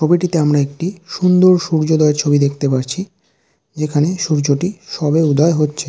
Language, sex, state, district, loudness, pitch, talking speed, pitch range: Bengali, male, West Bengal, Jalpaiguri, -15 LUFS, 155 Hz, 130 wpm, 145-180 Hz